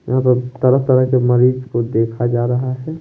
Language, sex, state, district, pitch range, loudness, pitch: Hindi, male, Bihar, West Champaran, 120-130 Hz, -16 LUFS, 125 Hz